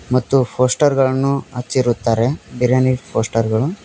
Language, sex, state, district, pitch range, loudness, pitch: Kannada, male, Karnataka, Koppal, 120-135 Hz, -17 LUFS, 125 Hz